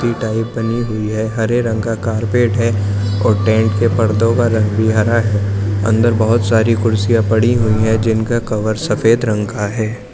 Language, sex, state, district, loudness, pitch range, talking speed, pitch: Hindi, male, Uttar Pradesh, Jyotiba Phule Nagar, -15 LUFS, 110-115 Hz, 180 wpm, 110 Hz